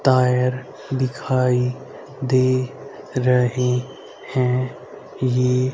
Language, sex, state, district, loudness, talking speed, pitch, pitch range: Hindi, male, Haryana, Rohtak, -21 LUFS, 65 wpm, 130 Hz, 125-130 Hz